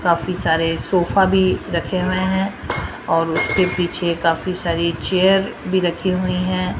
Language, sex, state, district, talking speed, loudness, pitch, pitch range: Hindi, female, Rajasthan, Jaipur, 150 wpm, -19 LUFS, 180 Hz, 170-185 Hz